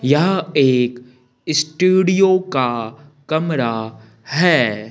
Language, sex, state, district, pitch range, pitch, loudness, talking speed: Hindi, male, Bihar, Patna, 125-165 Hz, 140 Hz, -17 LUFS, 75 wpm